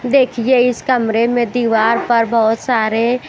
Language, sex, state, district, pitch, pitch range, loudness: Hindi, female, Haryana, Jhajjar, 235 Hz, 225-250 Hz, -15 LUFS